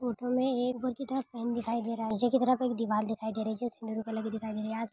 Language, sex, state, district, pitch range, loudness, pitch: Hindi, female, Bihar, Jamui, 220-250 Hz, -32 LUFS, 230 Hz